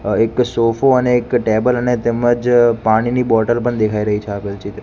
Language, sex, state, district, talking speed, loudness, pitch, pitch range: Gujarati, male, Gujarat, Gandhinagar, 200 wpm, -16 LUFS, 115 Hz, 110-120 Hz